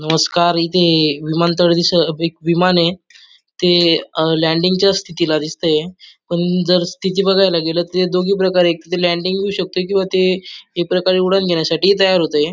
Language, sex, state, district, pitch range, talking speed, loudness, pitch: Marathi, male, Maharashtra, Dhule, 165-185 Hz, 175 wpm, -15 LUFS, 175 Hz